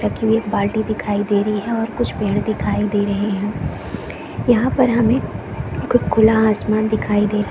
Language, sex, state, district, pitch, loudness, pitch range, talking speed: Hindi, female, Chhattisgarh, Korba, 215 Hz, -18 LUFS, 205-225 Hz, 200 wpm